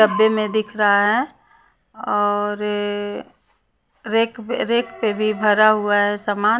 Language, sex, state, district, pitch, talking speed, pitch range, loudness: Hindi, female, Punjab, Pathankot, 215 Hz, 145 wpm, 205-215 Hz, -19 LUFS